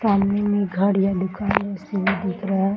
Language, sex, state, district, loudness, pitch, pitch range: Hindi, female, Bihar, Muzaffarpur, -22 LUFS, 195 Hz, 190-200 Hz